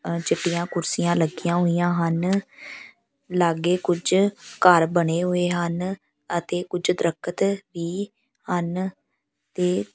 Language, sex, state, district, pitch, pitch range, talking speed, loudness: Punjabi, female, Punjab, Pathankot, 175 Hz, 170-185 Hz, 110 wpm, -23 LUFS